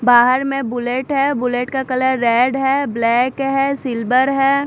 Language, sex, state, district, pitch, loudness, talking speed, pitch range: Hindi, female, Bihar, Katihar, 260 Hz, -17 LUFS, 165 wpm, 245-275 Hz